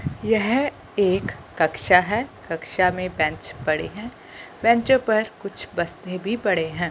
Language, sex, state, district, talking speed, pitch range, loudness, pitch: Hindi, female, Punjab, Fazilka, 140 wpm, 175-230 Hz, -22 LUFS, 200 Hz